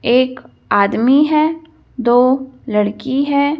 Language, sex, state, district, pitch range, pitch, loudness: Hindi, female, Madhya Pradesh, Bhopal, 240-285 Hz, 260 Hz, -15 LUFS